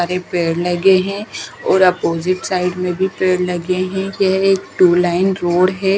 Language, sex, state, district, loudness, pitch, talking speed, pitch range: Hindi, female, Haryana, Charkhi Dadri, -16 LUFS, 185 Hz, 180 wpm, 180-190 Hz